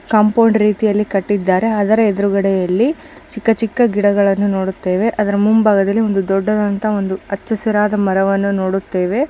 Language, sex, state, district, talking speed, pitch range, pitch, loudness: Kannada, female, Karnataka, Chamarajanagar, 95 wpm, 195-220 Hz, 205 Hz, -15 LUFS